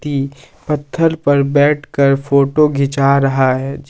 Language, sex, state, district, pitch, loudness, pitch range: Hindi, male, Jharkhand, Palamu, 140 Hz, -14 LUFS, 135-145 Hz